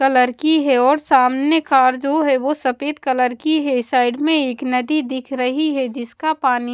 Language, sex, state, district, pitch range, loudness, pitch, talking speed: Hindi, female, Bihar, West Champaran, 250-300 Hz, -17 LUFS, 265 Hz, 195 wpm